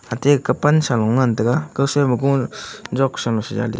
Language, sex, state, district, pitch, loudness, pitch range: Wancho, male, Arunachal Pradesh, Longding, 130 Hz, -19 LUFS, 115-140 Hz